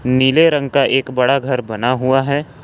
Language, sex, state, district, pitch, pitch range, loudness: Hindi, male, Jharkhand, Ranchi, 135 Hz, 125-140 Hz, -15 LUFS